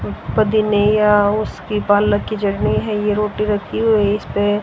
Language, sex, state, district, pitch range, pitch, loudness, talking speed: Hindi, female, Haryana, Rohtak, 205-215 Hz, 210 Hz, -17 LUFS, 65 wpm